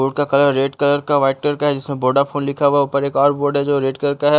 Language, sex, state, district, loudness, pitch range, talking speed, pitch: Hindi, male, Haryana, Jhajjar, -17 LUFS, 140-145 Hz, 340 wpm, 140 Hz